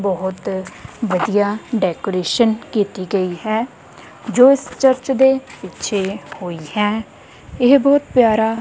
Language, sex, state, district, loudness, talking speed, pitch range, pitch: Punjabi, female, Punjab, Kapurthala, -17 LUFS, 110 wpm, 190-250 Hz, 215 Hz